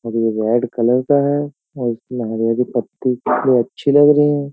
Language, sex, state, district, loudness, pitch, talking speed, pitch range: Hindi, male, Uttar Pradesh, Jyotiba Phule Nagar, -17 LUFS, 125 Hz, 200 wpm, 115-145 Hz